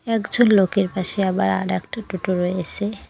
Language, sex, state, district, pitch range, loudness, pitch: Bengali, female, West Bengal, Cooch Behar, 180-205 Hz, -21 LUFS, 185 Hz